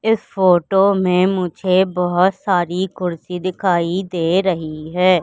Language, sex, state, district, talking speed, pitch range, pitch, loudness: Hindi, female, Madhya Pradesh, Katni, 125 wpm, 175-190 Hz, 185 Hz, -17 LUFS